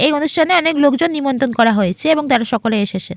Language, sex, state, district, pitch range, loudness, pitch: Bengali, female, West Bengal, Jalpaiguri, 225-310 Hz, -15 LUFS, 270 Hz